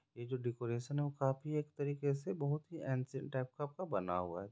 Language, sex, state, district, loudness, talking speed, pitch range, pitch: Hindi, male, Bihar, Jahanabad, -40 LUFS, 210 wpm, 125-145 Hz, 135 Hz